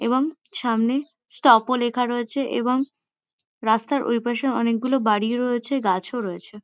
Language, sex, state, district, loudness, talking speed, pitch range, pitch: Bengali, female, West Bengal, Kolkata, -22 LUFS, 125 wpm, 230-265 Hz, 240 Hz